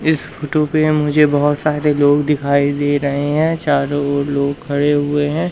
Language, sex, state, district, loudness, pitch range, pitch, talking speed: Hindi, male, Madhya Pradesh, Umaria, -16 LUFS, 145-150 Hz, 145 Hz, 185 wpm